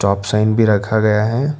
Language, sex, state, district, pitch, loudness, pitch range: Hindi, male, Karnataka, Bangalore, 110 Hz, -15 LUFS, 105-110 Hz